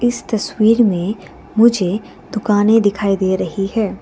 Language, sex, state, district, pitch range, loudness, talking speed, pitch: Hindi, female, Arunachal Pradesh, Lower Dibang Valley, 195-220 Hz, -16 LUFS, 135 wpm, 210 Hz